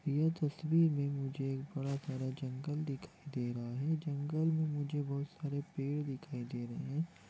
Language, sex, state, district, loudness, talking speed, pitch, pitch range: Hindi, male, Chhattisgarh, Raigarh, -38 LUFS, 165 wpm, 145 Hz, 135-155 Hz